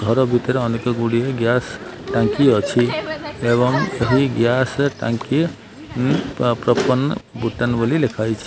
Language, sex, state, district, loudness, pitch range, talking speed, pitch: Odia, male, Odisha, Malkangiri, -19 LUFS, 115-135 Hz, 115 wpm, 120 Hz